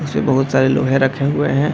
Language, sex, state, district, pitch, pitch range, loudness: Hindi, male, Bihar, Darbhanga, 135 Hz, 135-140 Hz, -16 LUFS